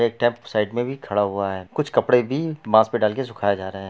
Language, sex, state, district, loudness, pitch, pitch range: Hindi, male, Bihar, Gopalganj, -22 LUFS, 110 Hz, 100-120 Hz